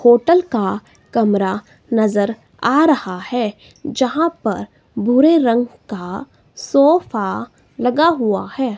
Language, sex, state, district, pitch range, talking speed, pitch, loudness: Hindi, female, Himachal Pradesh, Shimla, 210-290 Hz, 110 wpm, 240 Hz, -17 LUFS